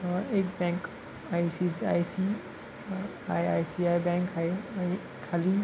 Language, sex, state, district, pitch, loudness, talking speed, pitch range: Marathi, male, Maharashtra, Pune, 180 Hz, -31 LUFS, 95 wpm, 170-190 Hz